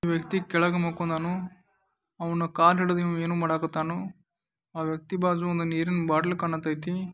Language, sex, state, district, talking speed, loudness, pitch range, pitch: Kannada, male, Karnataka, Dharwad, 160 wpm, -27 LUFS, 165-180 Hz, 170 Hz